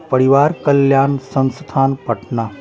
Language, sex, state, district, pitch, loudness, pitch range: Hindi, male, Bihar, Patna, 135 Hz, -15 LUFS, 130-140 Hz